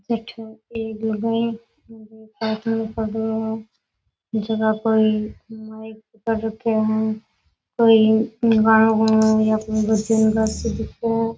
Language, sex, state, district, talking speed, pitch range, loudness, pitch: Rajasthani, female, Rajasthan, Nagaur, 115 wpm, 220-225 Hz, -20 LUFS, 220 Hz